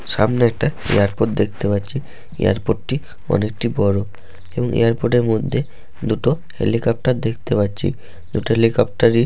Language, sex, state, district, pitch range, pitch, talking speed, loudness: Bengali, male, West Bengal, Malda, 105-125 Hz, 115 Hz, 125 wpm, -19 LUFS